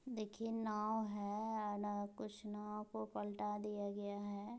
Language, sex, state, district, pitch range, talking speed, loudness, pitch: Hindi, female, Bihar, Muzaffarpur, 205-215 Hz, 155 wpm, -44 LUFS, 210 Hz